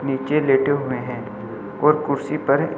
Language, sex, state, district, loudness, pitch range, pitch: Hindi, male, Delhi, New Delhi, -21 LUFS, 125-145 Hz, 135 Hz